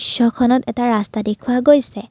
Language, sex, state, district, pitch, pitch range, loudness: Assamese, female, Assam, Kamrup Metropolitan, 240 Hz, 215-250 Hz, -16 LUFS